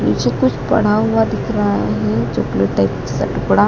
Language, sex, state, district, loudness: Hindi, female, Madhya Pradesh, Dhar, -17 LUFS